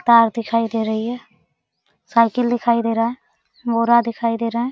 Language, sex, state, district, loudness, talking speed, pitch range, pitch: Hindi, female, Bihar, Araria, -19 LUFS, 180 wpm, 230-235 Hz, 230 Hz